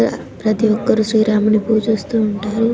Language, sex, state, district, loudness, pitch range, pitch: Telugu, female, Telangana, Nalgonda, -16 LUFS, 215-220 Hz, 215 Hz